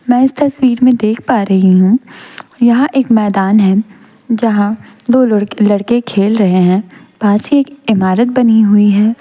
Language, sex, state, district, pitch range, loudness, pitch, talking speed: Hindi, female, Chhattisgarh, Raipur, 205-245 Hz, -11 LUFS, 220 Hz, 170 wpm